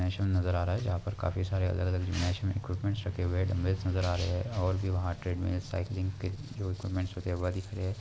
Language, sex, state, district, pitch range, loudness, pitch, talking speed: Hindi, male, West Bengal, Jalpaiguri, 90-95 Hz, -33 LUFS, 95 Hz, 185 wpm